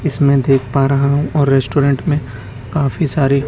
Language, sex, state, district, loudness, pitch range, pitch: Hindi, male, Chhattisgarh, Raipur, -15 LUFS, 135-145 Hz, 140 Hz